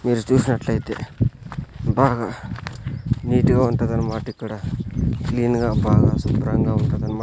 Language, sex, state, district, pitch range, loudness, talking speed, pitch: Telugu, male, Andhra Pradesh, Sri Satya Sai, 115-130 Hz, -21 LUFS, 100 wpm, 120 Hz